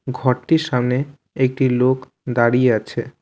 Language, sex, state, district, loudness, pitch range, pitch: Bengali, male, West Bengal, Alipurduar, -19 LUFS, 125-130 Hz, 125 Hz